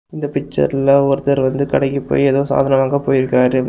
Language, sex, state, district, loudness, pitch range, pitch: Tamil, male, Tamil Nadu, Kanyakumari, -16 LUFS, 135-140 Hz, 135 Hz